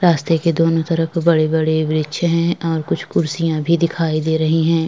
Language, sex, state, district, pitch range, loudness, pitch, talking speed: Hindi, female, Bihar, Vaishali, 160-165 Hz, -17 LUFS, 165 Hz, 195 wpm